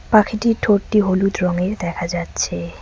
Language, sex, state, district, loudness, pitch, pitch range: Bengali, female, West Bengal, Cooch Behar, -19 LUFS, 190 Hz, 175-210 Hz